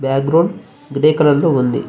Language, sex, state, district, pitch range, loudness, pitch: Telugu, male, Andhra Pradesh, Visakhapatnam, 135-155 Hz, -14 LUFS, 145 Hz